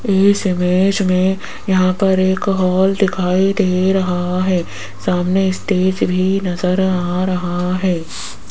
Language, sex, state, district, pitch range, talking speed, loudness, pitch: Hindi, female, Rajasthan, Jaipur, 180-190 Hz, 125 wpm, -16 LUFS, 185 Hz